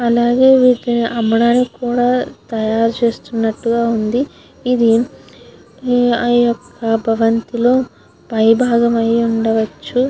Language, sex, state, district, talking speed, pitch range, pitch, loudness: Telugu, female, Andhra Pradesh, Guntur, 90 wpm, 225-245 Hz, 235 Hz, -15 LUFS